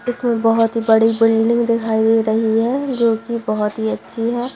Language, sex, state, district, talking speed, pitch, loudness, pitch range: Hindi, female, Bihar, Purnia, 195 wpm, 225 Hz, -17 LUFS, 220-235 Hz